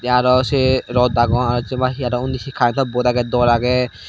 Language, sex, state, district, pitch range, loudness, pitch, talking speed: Chakma, male, Tripura, Dhalai, 120-130 Hz, -17 LUFS, 125 Hz, 235 wpm